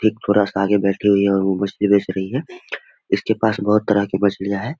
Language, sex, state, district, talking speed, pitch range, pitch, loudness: Hindi, male, Bihar, Muzaffarpur, 250 wpm, 100-105 Hz, 100 Hz, -19 LUFS